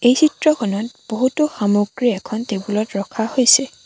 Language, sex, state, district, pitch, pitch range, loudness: Assamese, female, Assam, Sonitpur, 225 Hz, 205-255 Hz, -18 LUFS